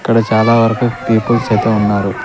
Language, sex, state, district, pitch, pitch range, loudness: Telugu, male, Andhra Pradesh, Sri Satya Sai, 115 Hz, 105-115 Hz, -13 LUFS